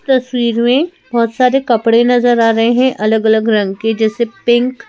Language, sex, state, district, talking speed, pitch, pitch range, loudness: Hindi, female, Madhya Pradesh, Bhopal, 185 wpm, 235 Hz, 225-255 Hz, -13 LUFS